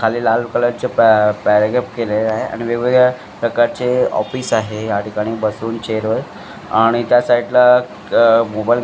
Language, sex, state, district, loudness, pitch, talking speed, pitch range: Marathi, male, Maharashtra, Mumbai Suburban, -16 LUFS, 115 Hz, 130 wpm, 110-120 Hz